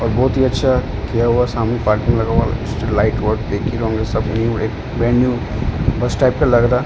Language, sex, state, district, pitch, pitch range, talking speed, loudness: Hindi, male, Uttar Pradesh, Ghazipur, 115 Hz, 110-120 Hz, 150 wpm, -17 LUFS